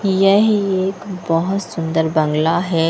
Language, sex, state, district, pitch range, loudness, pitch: Hindi, female, Punjab, Kapurthala, 165-195 Hz, -17 LUFS, 180 Hz